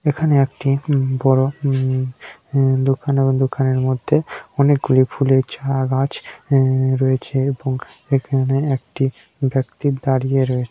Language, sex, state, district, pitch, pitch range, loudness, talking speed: Bengali, male, West Bengal, Malda, 135 Hz, 130-140 Hz, -18 LUFS, 120 wpm